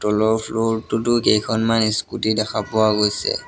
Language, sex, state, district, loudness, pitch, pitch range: Assamese, male, Assam, Sonitpur, -19 LUFS, 110 Hz, 110-115 Hz